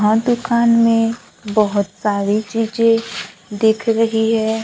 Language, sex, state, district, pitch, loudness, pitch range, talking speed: Hindi, female, Maharashtra, Gondia, 225 Hz, -16 LUFS, 210-230 Hz, 115 wpm